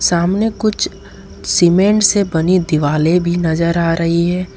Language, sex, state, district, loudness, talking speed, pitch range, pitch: Hindi, male, Jharkhand, Ranchi, -14 LUFS, 145 wpm, 165-190 Hz, 175 Hz